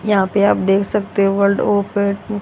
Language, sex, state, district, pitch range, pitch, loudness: Hindi, female, Haryana, Rohtak, 200-205 Hz, 200 Hz, -16 LUFS